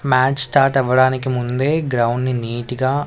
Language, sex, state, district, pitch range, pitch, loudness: Telugu, male, Andhra Pradesh, Sri Satya Sai, 125-135 Hz, 130 Hz, -17 LUFS